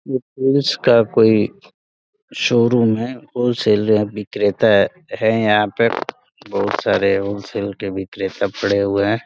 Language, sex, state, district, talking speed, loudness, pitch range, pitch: Hindi, male, Uttar Pradesh, Deoria, 155 wpm, -18 LUFS, 100-120 Hz, 110 Hz